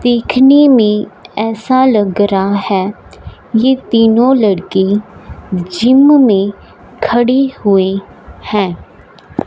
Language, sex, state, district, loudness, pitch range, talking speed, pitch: Hindi, female, Punjab, Fazilka, -11 LUFS, 200-250 Hz, 90 wpm, 215 Hz